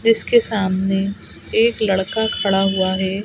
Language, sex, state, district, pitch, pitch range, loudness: Hindi, female, Madhya Pradesh, Bhopal, 195 Hz, 190-220 Hz, -18 LUFS